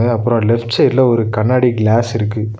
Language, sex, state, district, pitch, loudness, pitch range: Tamil, male, Tamil Nadu, Nilgiris, 115 Hz, -14 LUFS, 110-120 Hz